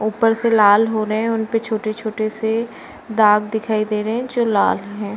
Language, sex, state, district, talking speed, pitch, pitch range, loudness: Hindi, female, Uttar Pradesh, Varanasi, 195 wpm, 220 Hz, 215-225 Hz, -18 LUFS